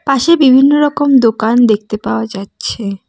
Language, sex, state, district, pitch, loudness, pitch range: Bengali, female, West Bengal, Cooch Behar, 235 Hz, -11 LUFS, 205-280 Hz